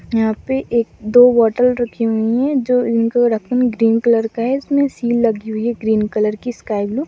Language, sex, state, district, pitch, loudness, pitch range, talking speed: Hindi, female, Bihar, Madhepura, 235 Hz, -16 LUFS, 220-250 Hz, 220 wpm